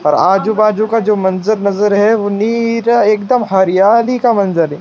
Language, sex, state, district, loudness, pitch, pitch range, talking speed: Hindi, male, Maharashtra, Washim, -12 LUFS, 210 Hz, 195-225 Hz, 175 wpm